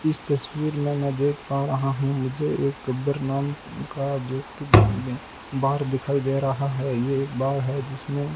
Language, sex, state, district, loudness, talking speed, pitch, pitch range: Hindi, male, Rajasthan, Bikaner, -25 LUFS, 195 wpm, 140 Hz, 135-140 Hz